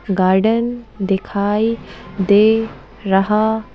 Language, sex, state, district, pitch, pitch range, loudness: Hindi, female, Madhya Pradesh, Bhopal, 210 Hz, 195-220 Hz, -16 LUFS